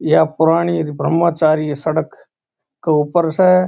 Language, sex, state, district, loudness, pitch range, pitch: Marwari, male, Rajasthan, Churu, -16 LUFS, 155-170 Hz, 160 Hz